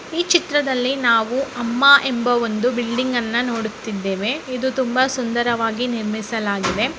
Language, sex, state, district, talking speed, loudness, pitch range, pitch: Kannada, female, Karnataka, Mysore, 110 wpm, -19 LUFS, 225-260 Hz, 240 Hz